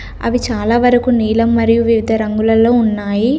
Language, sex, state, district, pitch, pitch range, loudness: Telugu, female, Telangana, Komaram Bheem, 230 Hz, 220-240 Hz, -13 LUFS